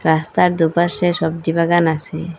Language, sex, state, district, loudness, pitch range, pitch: Bengali, female, Assam, Hailakandi, -17 LUFS, 160-175 Hz, 165 Hz